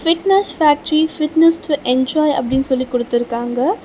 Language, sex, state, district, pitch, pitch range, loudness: Tamil, female, Tamil Nadu, Chennai, 295 Hz, 255-325 Hz, -16 LUFS